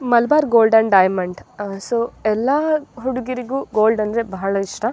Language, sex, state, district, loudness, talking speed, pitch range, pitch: Kannada, female, Karnataka, Dakshina Kannada, -18 LUFS, 160 wpm, 200-255 Hz, 230 Hz